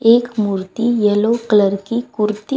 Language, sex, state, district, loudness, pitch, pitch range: Hindi, female, Bihar, West Champaran, -17 LUFS, 220 Hz, 210-235 Hz